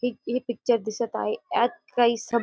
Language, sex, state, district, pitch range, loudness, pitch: Marathi, female, Maharashtra, Dhule, 235-245 Hz, -26 LUFS, 240 Hz